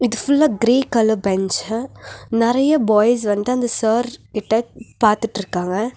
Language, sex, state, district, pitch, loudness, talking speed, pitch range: Tamil, female, Tamil Nadu, Nilgiris, 225 Hz, -18 LUFS, 120 wpm, 210-245 Hz